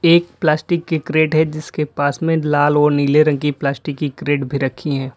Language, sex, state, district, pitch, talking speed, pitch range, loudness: Hindi, male, Uttar Pradesh, Lalitpur, 150 Hz, 220 wpm, 145-155 Hz, -17 LUFS